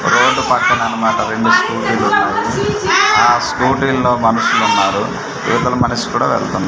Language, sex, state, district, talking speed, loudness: Telugu, male, Andhra Pradesh, Manyam, 115 wpm, -14 LUFS